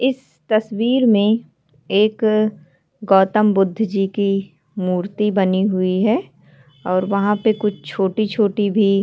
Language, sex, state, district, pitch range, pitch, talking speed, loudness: Hindi, female, Uttarakhand, Tehri Garhwal, 190-215 Hz, 205 Hz, 135 wpm, -18 LUFS